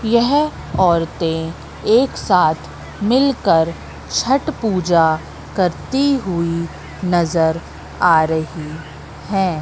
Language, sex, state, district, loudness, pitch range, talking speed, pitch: Hindi, female, Madhya Pradesh, Katni, -17 LUFS, 160-230 Hz, 80 wpm, 175 Hz